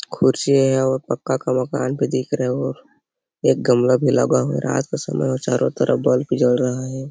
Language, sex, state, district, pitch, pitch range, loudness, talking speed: Hindi, male, Chhattisgarh, Sarguja, 130 Hz, 125-130 Hz, -19 LUFS, 195 wpm